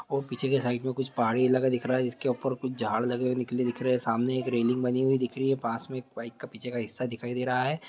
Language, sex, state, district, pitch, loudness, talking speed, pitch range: Hindi, male, Chhattisgarh, Bastar, 125 Hz, -29 LUFS, 320 wpm, 120-130 Hz